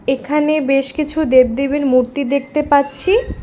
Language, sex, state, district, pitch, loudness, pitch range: Bengali, female, West Bengal, Alipurduar, 280 Hz, -16 LUFS, 270-300 Hz